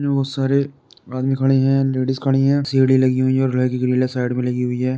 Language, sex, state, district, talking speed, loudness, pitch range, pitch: Hindi, male, Uttar Pradesh, Deoria, 145 wpm, -18 LUFS, 130-135 Hz, 130 Hz